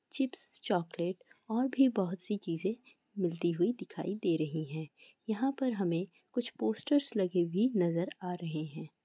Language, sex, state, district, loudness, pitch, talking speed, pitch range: Hindi, female, Bihar, Purnia, -34 LUFS, 190 Hz, 160 wpm, 170-245 Hz